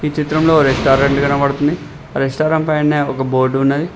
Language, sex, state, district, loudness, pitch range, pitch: Telugu, male, Telangana, Mahabubabad, -15 LUFS, 135-150 Hz, 145 Hz